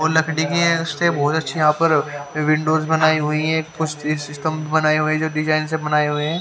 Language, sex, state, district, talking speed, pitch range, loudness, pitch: Hindi, male, Haryana, Charkhi Dadri, 225 wpm, 150-160 Hz, -19 LUFS, 155 Hz